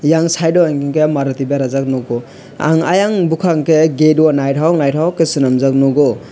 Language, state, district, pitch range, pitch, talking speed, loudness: Kokborok, Tripura, West Tripura, 135-165 Hz, 155 Hz, 170 wpm, -14 LUFS